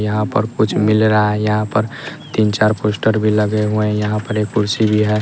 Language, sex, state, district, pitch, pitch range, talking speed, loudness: Hindi, male, Bihar, West Champaran, 105 Hz, 105-110 Hz, 230 wpm, -16 LUFS